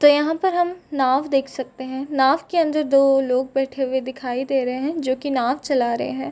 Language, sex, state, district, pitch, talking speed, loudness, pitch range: Hindi, female, Bihar, Supaul, 270 Hz, 235 wpm, -21 LUFS, 260-290 Hz